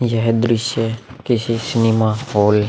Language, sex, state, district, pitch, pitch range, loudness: Hindi, male, Bihar, Vaishali, 115 Hz, 110-120 Hz, -18 LUFS